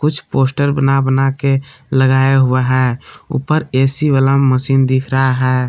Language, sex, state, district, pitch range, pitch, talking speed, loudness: Hindi, male, Jharkhand, Palamu, 130-140 Hz, 135 Hz, 160 wpm, -14 LUFS